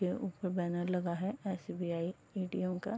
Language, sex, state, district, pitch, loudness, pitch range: Hindi, female, Uttar Pradesh, Varanasi, 180 Hz, -37 LUFS, 175-190 Hz